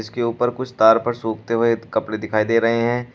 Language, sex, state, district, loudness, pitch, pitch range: Hindi, male, Uttar Pradesh, Shamli, -19 LUFS, 115 Hz, 110-120 Hz